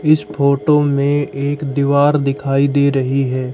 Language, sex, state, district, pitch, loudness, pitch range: Hindi, male, Haryana, Jhajjar, 140 Hz, -15 LUFS, 135-145 Hz